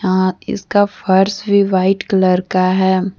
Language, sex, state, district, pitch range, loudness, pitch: Hindi, female, Jharkhand, Deoghar, 185-200 Hz, -15 LUFS, 190 Hz